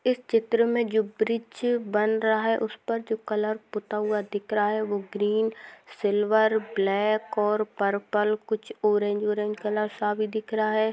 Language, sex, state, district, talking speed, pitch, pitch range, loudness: Hindi, female, Rajasthan, Churu, 175 wpm, 215 Hz, 210-220 Hz, -26 LUFS